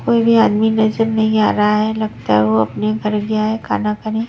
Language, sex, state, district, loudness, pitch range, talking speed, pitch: Hindi, female, Punjab, Pathankot, -16 LUFS, 210-220 Hz, 250 wpm, 215 Hz